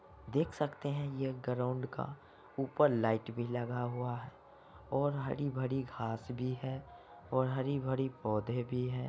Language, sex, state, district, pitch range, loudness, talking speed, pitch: Hindi, male, Bihar, Saran, 120-135 Hz, -36 LUFS, 145 wpm, 130 Hz